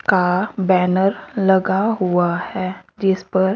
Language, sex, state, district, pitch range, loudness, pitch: Hindi, female, Haryana, Rohtak, 185-195 Hz, -18 LUFS, 190 Hz